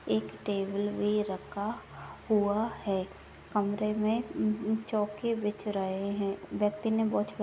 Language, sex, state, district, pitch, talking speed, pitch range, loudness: Hindi, female, Uttarakhand, Uttarkashi, 210 Hz, 135 wpm, 200-215 Hz, -31 LUFS